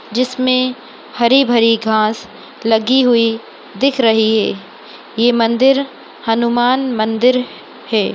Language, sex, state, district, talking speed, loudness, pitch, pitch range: Hindi, female, Maharashtra, Nagpur, 105 wpm, -14 LUFS, 235 Hz, 225-255 Hz